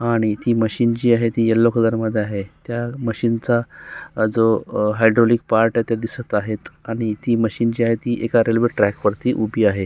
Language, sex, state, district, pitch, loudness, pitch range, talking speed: Marathi, male, Maharashtra, Solapur, 115 Hz, -19 LUFS, 110-115 Hz, 200 wpm